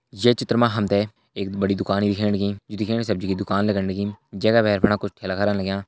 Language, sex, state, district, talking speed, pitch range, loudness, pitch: Hindi, male, Uttarakhand, Uttarkashi, 285 wpm, 100-105 Hz, -22 LUFS, 100 Hz